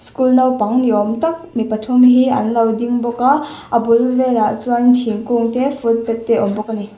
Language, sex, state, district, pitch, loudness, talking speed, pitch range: Mizo, female, Mizoram, Aizawl, 235 Hz, -15 LUFS, 215 wpm, 225-255 Hz